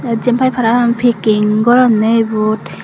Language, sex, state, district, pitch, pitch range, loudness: Chakma, female, Tripura, Dhalai, 230 Hz, 215-245 Hz, -12 LUFS